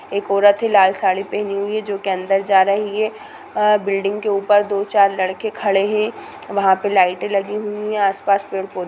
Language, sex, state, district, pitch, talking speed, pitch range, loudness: Hindi, female, Bihar, Gopalganj, 200 Hz, 205 wpm, 195-210 Hz, -18 LUFS